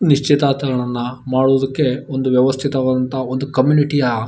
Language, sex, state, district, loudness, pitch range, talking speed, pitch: Kannada, male, Karnataka, Shimoga, -17 LUFS, 130-140 Hz, 85 wpm, 130 Hz